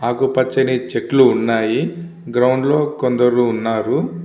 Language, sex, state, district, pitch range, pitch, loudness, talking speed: Telugu, male, Andhra Pradesh, Visakhapatnam, 115-135 Hz, 125 Hz, -17 LUFS, 100 wpm